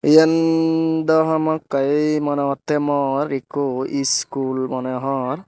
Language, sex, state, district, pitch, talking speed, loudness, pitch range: Chakma, male, Tripura, Dhalai, 145 Hz, 100 wpm, -19 LUFS, 135-160 Hz